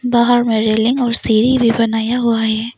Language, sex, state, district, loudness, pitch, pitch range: Hindi, female, Arunachal Pradesh, Lower Dibang Valley, -14 LUFS, 230 Hz, 225-245 Hz